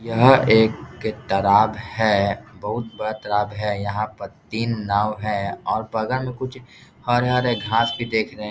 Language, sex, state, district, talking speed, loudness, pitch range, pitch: Hindi, male, Bihar, Jahanabad, 160 wpm, -21 LUFS, 105-120 Hz, 110 Hz